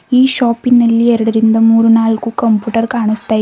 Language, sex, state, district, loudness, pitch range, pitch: Kannada, female, Karnataka, Bidar, -11 LUFS, 225-235 Hz, 230 Hz